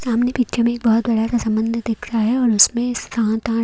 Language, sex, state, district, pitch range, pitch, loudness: Hindi, female, Haryana, Jhajjar, 225-240 Hz, 230 Hz, -18 LUFS